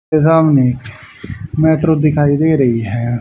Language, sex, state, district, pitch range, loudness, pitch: Hindi, male, Haryana, Jhajjar, 120-155 Hz, -13 LUFS, 140 Hz